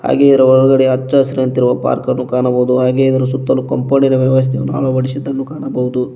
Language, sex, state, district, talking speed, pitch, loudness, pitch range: Kannada, male, Karnataka, Koppal, 125 wpm, 130 Hz, -13 LUFS, 125-135 Hz